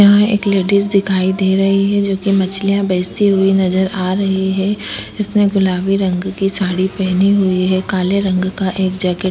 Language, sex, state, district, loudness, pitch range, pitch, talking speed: Hindi, female, Uttar Pradesh, Jyotiba Phule Nagar, -15 LUFS, 185-200 Hz, 190 Hz, 195 wpm